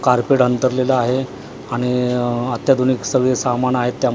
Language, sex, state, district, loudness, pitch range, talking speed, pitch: Marathi, male, Maharashtra, Mumbai Suburban, -18 LUFS, 125-130 Hz, 130 wpm, 125 Hz